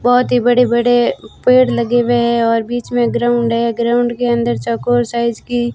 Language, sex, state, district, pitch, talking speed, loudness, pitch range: Hindi, female, Rajasthan, Bikaner, 240 Hz, 200 wpm, -15 LUFS, 235-245 Hz